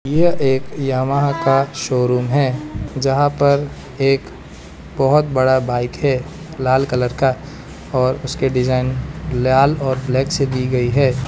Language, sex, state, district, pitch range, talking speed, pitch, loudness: Hindi, male, Arunachal Pradesh, Lower Dibang Valley, 130-140 Hz, 140 wpm, 135 Hz, -17 LUFS